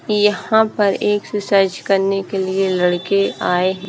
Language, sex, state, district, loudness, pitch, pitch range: Hindi, female, Haryana, Rohtak, -17 LUFS, 195 Hz, 190-205 Hz